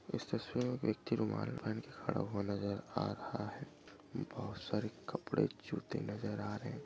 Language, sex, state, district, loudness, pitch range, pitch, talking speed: Hindi, male, Maharashtra, Dhule, -40 LUFS, 100-125 Hz, 105 Hz, 175 wpm